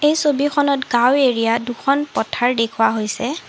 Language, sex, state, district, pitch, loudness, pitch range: Assamese, female, Assam, Sonitpur, 255 Hz, -18 LUFS, 235-285 Hz